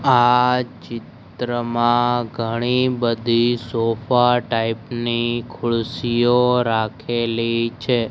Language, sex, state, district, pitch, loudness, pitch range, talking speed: Gujarati, male, Gujarat, Gandhinagar, 120 Hz, -19 LUFS, 115-120 Hz, 75 wpm